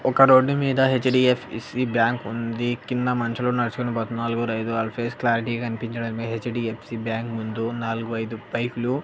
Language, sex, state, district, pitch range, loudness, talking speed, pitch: Telugu, male, Andhra Pradesh, Annamaya, 115-125 Hz, -24 LUFS, 160 wpm, 120 Hz